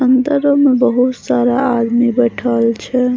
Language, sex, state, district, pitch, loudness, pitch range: Maithili, female, Bihar, Saharsa, 250 Hz, -14 LUFS, 240-255 Hz